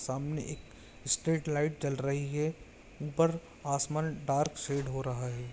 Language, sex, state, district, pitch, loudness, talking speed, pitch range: Hindi, male, Chhattisgarh, Bilaspur, 145 Hz, -33 LUFS, 150 wpm, 135-155 Hz